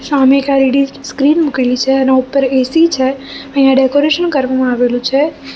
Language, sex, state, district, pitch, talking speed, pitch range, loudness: Gujarati, female, Gujarat, Gandhinagar, 270 Hz, 160 wpm, 260-280 Hz, -12 LUFS